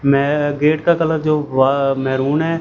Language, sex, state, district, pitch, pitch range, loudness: Hindi, male, Punjab, Fazilka, 145 Hz, 140-155 Hz, -16 LUFS